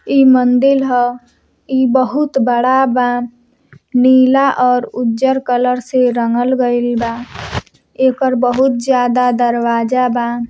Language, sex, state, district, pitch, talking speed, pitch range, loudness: Bhojpuri, male, Uttar Pradesh, Deoria, 250 Hz, 115 wpm, 245-260 Hz, -14 LUFS